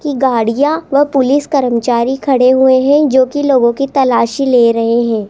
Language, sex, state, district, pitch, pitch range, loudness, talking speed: Hindi, female, Rajasthan, Jaipur, 260 Hz, 240-280 Hz, -12 LUFS, 180 wpm